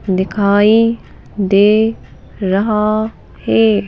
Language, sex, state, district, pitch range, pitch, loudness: Hindi, female, Madhya Pradesh, Bhopal, 190-215 Hz, 205 Hz, -14 LUFS